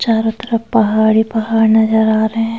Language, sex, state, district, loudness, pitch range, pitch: Hindi, female, Goa, North and South Goa, -14 LUFS, 220-225 Hz, 220 Hz